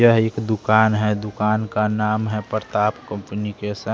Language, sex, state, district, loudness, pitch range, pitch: Hindi, male, Bihar, West Champaran, -21 LUFS, 105-110 Hz, 105 Hz